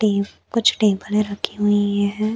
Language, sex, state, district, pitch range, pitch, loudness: Hindi, female, Chhattisgarh, Bastar, 200-215 Hz, 210 Hz, -20 LUFS